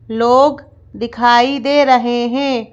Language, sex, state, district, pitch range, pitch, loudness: Hindi, female, Madhya Pradesh, Bhopal, 240-275 Hz, 245 Hz, -13 LUFS